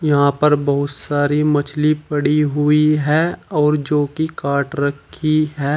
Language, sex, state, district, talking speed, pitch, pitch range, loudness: Hindi, male, Uttar Pradesh, Saharanpur, 145 wpm, 150 Hz, 145-150 Hz, -17 LUFS